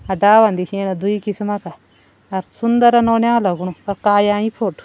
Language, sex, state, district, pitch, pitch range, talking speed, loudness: Garhwali, female, Uttarakhand, Tehri Garhwal, 205 Hz, 185-220 Hz, 185 wpm, -16 LUFS